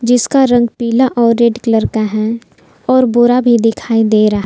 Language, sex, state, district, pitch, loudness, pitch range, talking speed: Hindi, female, Jharkhand, Palamu, 235 Hz, -12 LUFS, 225-245 Hz, 190 wpm